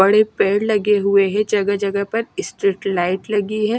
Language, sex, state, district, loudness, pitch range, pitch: Hindi, female, Himachal Pradesh, Shimla, -18 LUFS, 200-215 Hz, 205 Hz